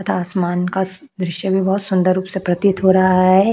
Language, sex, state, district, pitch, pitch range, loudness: Hindi, female, Uttar Pradesh, Jyotiba Phule Nagar, 185 Hz, 185-190 Hz, -17 LUFS